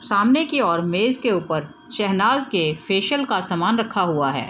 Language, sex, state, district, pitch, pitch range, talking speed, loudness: Hindi, female, Bihar, East Champaran, 200 Hz, 170-250 Hz, 185 wpm, -20 LUFS